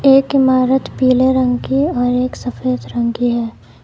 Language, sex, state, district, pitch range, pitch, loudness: Hindi, female, Karnataka, Bangalore, 235-265 Hz, 255 Hz, -15 LUFS